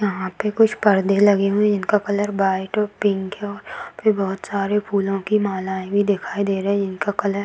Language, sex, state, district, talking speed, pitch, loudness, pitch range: Hindi, female, Bihar, Darbhanga, 210 wpm, 200 Hz, -20 LUFS, 195-205 Hz